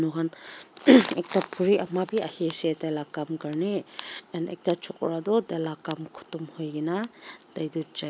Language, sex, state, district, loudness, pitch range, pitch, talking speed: Nagamese, female, Nagaland, Dimapur, -25 LUFS, 160-185 Hz, 165 Hz, 165 wpm